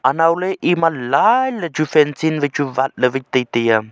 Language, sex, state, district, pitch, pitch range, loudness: Wancho, male, Arunachal Pradesh, Longding, 150 Hz, 130-165 Hz, -17 LUFS